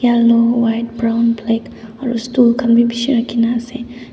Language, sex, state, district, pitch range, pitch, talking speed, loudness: Nagamese, female, Nagaland, Dimapur, 230-240 Hz, 235 Hz, 160 wpm, -15 LUFS